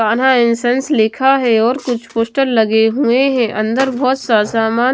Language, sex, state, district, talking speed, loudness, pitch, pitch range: Hindi, female, Himachal Pradesh, Shimla, 170 wpm, -14 LUFS, 240 Hz, 225-260 Hz